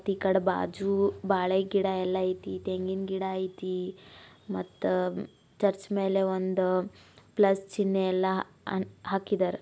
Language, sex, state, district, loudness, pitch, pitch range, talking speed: Kannada, female, Karnataka, Belgaum, -29 LUFS, 190 Hz, 185-195 Hz, 110 wpm